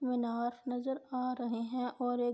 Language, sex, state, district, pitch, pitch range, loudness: Urdu, female, Andhra Pradesh, Anantapur, 245 Hz, 240-255 Hz, -36 LUFS